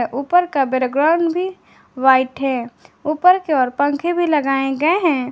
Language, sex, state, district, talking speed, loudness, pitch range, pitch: Hindi, female, Jharkhand, Garhwa, 160 wpm, -17 LUFS, 265-340 Hz, 285 Hz